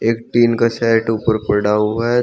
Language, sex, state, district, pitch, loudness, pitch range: Hindi, male, Uttar Pradesh, Shamli, 115 Hz, -16 LUFS, 110-115 Hz